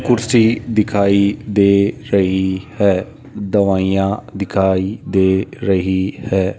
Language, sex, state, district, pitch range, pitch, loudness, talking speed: Hindi, male, Rajasthan, Jaipur, 95-110 Hz, 100 Hz, -16 LUFS, 90 wpm